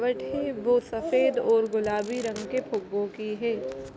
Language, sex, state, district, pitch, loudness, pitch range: Hindi, female, Chhattisgarh, Kabirdham, 225 Hz, -27 LUFS, 210-245 Hz